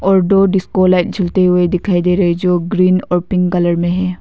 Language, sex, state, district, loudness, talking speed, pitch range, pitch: Hindi, female, Arunachal Pradesh, Papum Pare, -14 LUFS, 225 wpm, 180-185 Hz, 185 Hz